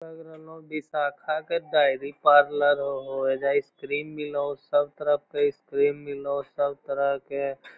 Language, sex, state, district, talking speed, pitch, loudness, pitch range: Magahi, male, Bihar, Lakhisarai, 160 wpm, 145 Hz, -26 LUFS, 140-155 Hz